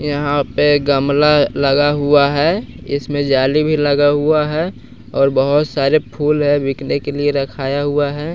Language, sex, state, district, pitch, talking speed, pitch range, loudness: Hindi, male, Bihar, West Champaran, 145 Hz, 165 wpm, 140-150 Hz, -15 LUFS